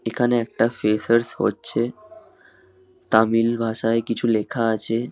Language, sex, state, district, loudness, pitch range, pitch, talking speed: Bengali, male, West Bengal, Dakshin Dinajpur, -21 LUFS, 115-120 Hz, 115 Hz, 115 wpm